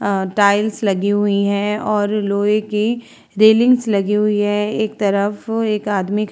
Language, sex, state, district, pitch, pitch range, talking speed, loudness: Hindi, female, Uttar Pradesh, Jalaun, 210 Hz, 200-215 Hz, 170 wpm, -17 LUFS